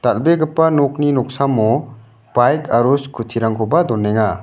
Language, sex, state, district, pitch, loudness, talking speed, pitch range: Garo, male, Meghalaya, South Garo Hills, 120 Hz, -16 LUFS, 110 wpm, 115-145 Hz